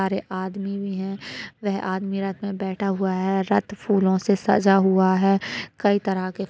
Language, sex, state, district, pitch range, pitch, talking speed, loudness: Hindi, female, Uttar Pradesh, Deoria, 190-200 Hz, 195 Hz, 195 wpm, -23 LUFS